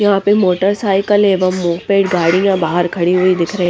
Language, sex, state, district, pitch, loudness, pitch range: Hindi, female, Punjab, Pathankot, 185 Hz, -14 LUFS, 175-200 Hz